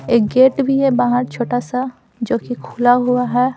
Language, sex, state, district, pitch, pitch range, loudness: Hindi, female, Bihar, Patna, 245 Hz, 245-255 Hz, -16 LUFS